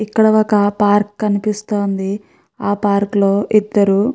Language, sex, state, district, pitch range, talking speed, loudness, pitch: Telugu, female, Andhra Pradesh, Chittoor, 200-215 Hz, 130 wpm, -16 LUFS, 205 Hz